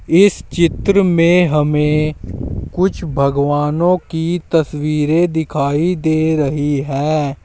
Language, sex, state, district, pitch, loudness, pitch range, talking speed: Hindi, male, Uttar Pradesh, Saharanpur, 155 Hz, -15 LUFS, 145-170 Hz, 95 wpm